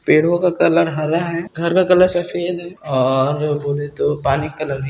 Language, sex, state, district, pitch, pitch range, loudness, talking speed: Hindi, female, Bihar, Saran, 155 Hz, 145-175 Hz, -18 LUFS, 210 wpm